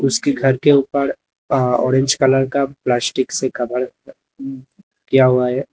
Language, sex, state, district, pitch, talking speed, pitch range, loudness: Hindi, male, Uttar Pradesh, Lalitpur, 135 Hz, 145 wpm, 125-140 Hz, -17 LUFS